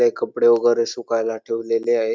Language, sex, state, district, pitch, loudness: Marathi, male, Maharashtra, Dhule, 120 Hz, -20 LUFS